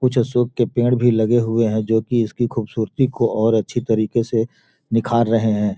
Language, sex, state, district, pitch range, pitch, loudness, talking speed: Hindi, male, Bihar, Gopalganj, 110-120 Hz, 115 Hz, -19 LUFS, 210 wpm